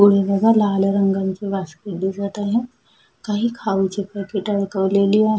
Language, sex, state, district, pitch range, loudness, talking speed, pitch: Marathi, female, Maharashtra, Sindhudurg, 195-210 Hz, -20 LUFS, 120 wpm, 200 Hz